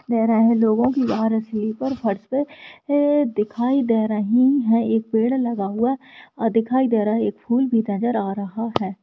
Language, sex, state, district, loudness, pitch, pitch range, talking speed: Hindi, female, Rajasthan, Churu, -20 LUFS, 225 Hz, 220-255 Hz, 185 wpm